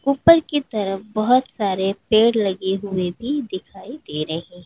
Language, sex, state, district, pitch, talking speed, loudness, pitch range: Hindi, female, Uttar Pradesh, Lalitpur, 205 Hz, 155 wpm, -20 LUFS, 190-255 Hz